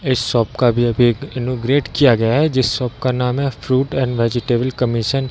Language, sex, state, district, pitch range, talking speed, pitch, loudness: Hindi, male, Bihar, Darbhanga, 120-135 Hz, 205 wpm, 125 Hz, -17 LUFS